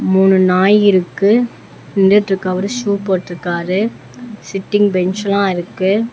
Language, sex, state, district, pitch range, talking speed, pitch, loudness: Tamil, female, Tamil Nadu, Namakkal, 185-205 Hz, 90 wpm, 195 Hz, -15 LUFS